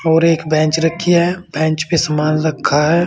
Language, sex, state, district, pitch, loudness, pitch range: Hindi, male, Uttar Pradesh, Saharanpur, 160 Hz, -15 LUFS, 155-165 Hz